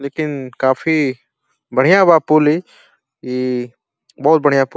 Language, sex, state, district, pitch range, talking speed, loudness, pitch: Bhojpuri, male, Uttar Pradesh, Deoria, 130-155 Hz, 140 wpm, -15 LUFS, 140 Hz